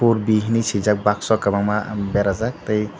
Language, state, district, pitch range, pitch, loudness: Kokborok, Tripura, Dhalai, 100-110 Hz, 105 Hz, -20 LUFS